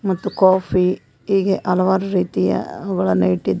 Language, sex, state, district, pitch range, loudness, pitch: Kannada, female, Karnataka, Koppal, 175-195 Hz, -18 LUFS, 185 Hz